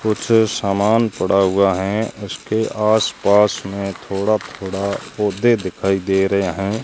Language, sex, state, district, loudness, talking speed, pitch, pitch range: Hindi, male, Rajasthan, Jaisalmer, -18 LUFS, 130 wpm, 100 Hz, 95-110 Hz